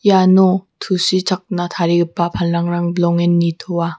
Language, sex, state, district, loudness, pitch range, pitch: Garo, female, Meghalaya, West Garo Hills, -16 LUFS, 170-185 Hz, 175 Hz